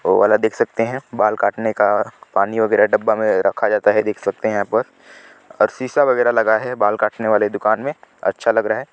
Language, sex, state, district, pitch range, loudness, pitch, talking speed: Hindi, male, Chhattisgarh, Sarguja, 105-125 Hz, -18 LUFS, 110 Hz, 235 wpm